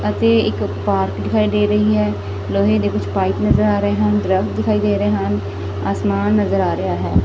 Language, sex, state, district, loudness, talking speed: Punjabi, female, Punjab, Fazilka, -17 LUFS, 205 wpm